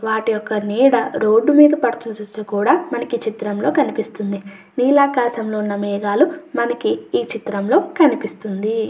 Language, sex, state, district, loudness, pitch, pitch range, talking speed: Telugu, female, Andhra Pradesh, Chittoor, -18 LUFS, 220 Hz, 210-255 Hz, 100 wpm